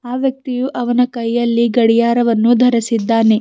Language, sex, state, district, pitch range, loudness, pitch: Kannada, female, Karnataka, Bidar, 230-245 Hz, -15 LUFS, 235 Hz